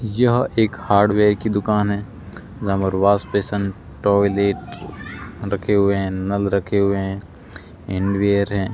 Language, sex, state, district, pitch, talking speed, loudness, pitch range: Hindi, male, Rajasthan, Bikaner, 100 Hz, 145 wpm, -19 LUFS, 95-105 Hz